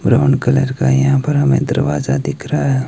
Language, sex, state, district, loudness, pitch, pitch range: Hindi, male, Himachal Pradesh, Shimla, -15 LUFS, 135 Hz, 130-140 Hz